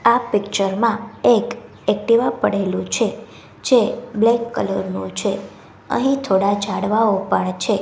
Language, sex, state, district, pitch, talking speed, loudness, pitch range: Gujarati, female, Gujarat, Gandhinagar, 210 Hz, 130 wpm, -19 LUFS, 195-235 Hz